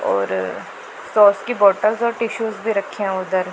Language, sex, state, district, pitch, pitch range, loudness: Hindi, female, Punjab, Pathankot, 200 Hz, 185-225 Hz, -19 LUFS